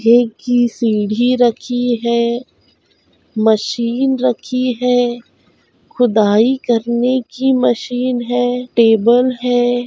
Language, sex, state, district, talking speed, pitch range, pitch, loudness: Hindi, female, Bihar, Jamui, 90 wpm, 235-250 Hz, 245 Hz, -15 LUFS